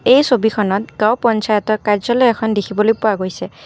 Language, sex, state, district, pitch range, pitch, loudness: Assamese, female, Assam, Kamrup Metropolitan, 210-230 Hz, 215 Hz, -16 LUFS